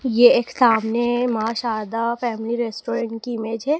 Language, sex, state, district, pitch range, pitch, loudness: Hindi, female, Madhya Pradesh, Dhar, 225-240 Hz, 235 Hz, -21 LUFS